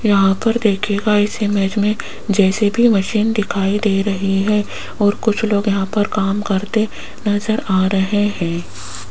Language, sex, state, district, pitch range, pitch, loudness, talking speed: Hindi, female, Rajasthan, Jaipur, 195-210 Hz, 205 Hz, -17 LUFS, 150 wpm